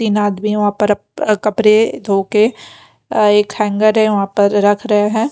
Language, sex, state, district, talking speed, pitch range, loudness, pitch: Hindi, female, Punjab, Pathankot, 170 wpm, 205-215 Hz, -14 LUFS, 210 Hz